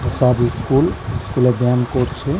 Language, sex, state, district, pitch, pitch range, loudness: Bengali, male, West Bengal, Dakshin Dinajpur, 125 Hz, 115-125 Hz, -17 LUFS